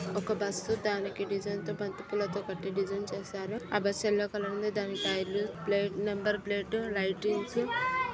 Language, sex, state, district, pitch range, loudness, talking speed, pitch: Telugu, female, Andhra Pradesh, Chittoor, 200-210 Hz, -33 LUFS, 170 wpm, 205 Hz